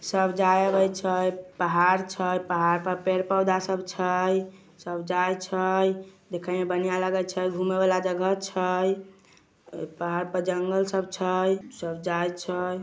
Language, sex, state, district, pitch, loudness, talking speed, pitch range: Magahi, male, Bihar, Samastipur, 185 Hz, -26 LUFS, 160 wpm, 180-190 Hz